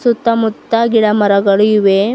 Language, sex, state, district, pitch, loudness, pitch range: Kannada, female, Karnataka, Bidar, 215 Hz, -12 LUFS, 200-230 Hz